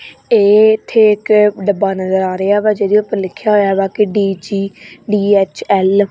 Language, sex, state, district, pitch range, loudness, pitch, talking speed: Punjabi, female, Punjab, Kapurthala, 195-210 Hz, -13 LUFS, 205 Hz, 150 wpm